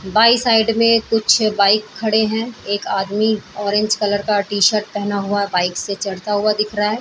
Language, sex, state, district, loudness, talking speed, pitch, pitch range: Hindi, female, Bihar, Saran, -17 LUFS, 190 wpm, 210 Hz, 200-220 Hz